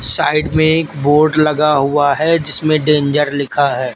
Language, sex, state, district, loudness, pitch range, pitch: Hindi, male, Uttar Pradesh, Lalitpur, -13 LUFS, 140-155 Hz, 150 Hz